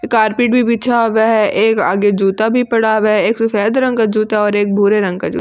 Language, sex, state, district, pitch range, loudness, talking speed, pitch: Hindi, female, Delhi, New Delhi, 205-230 Hz, -13 LUFS, 265 wpm, 220 Hz